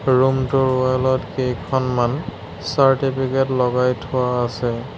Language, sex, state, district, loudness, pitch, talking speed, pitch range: Assamese, male, Assam, Sonitpur, -19 LUFS, 130 Hz, 110 wpm, 125-135 Hz